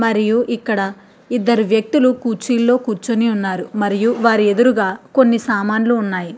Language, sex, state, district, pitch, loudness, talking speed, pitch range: Telugu, female, Andhra Pradesh, Krishna, 225 Hz, -16 LUFS, 120 wpm, 210-240 Hz